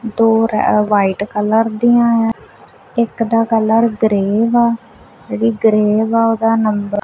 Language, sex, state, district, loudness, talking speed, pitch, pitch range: Punjabi, female, Punjab, Kapurthala, -14 LUFS, 145 wpm, 225 Hz, 215-230 Hz